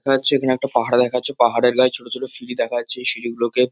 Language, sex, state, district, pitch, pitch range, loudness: Bengali, male, West Bengal, North 24 Parganas, 125 Hz, 120-130 Hz, -19 LUFS